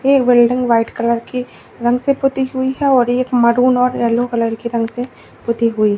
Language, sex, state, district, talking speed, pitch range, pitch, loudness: Hindi, female, Uttar Pradesh, Lalitpur, 210 wpm, 235-255 Hz, 245 Hz, -16 LUFS